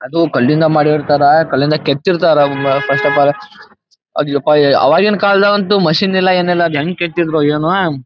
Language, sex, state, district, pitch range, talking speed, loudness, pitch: Kannada, male, Karnataka, Dharwad, 145-185 Hz, 150 wpm, -12 LUFS, 160 Hz